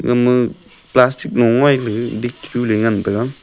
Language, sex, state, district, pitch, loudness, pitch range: Wancho, male, Arunachal Pradesh, Longding, 120 Hz, -16 LUFS, 115-125 Hz